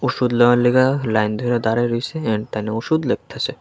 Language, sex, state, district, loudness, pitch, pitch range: Bengali, male, Tripura, West Tripura, -19 LUFS, 120 Hz, 110-130 Hz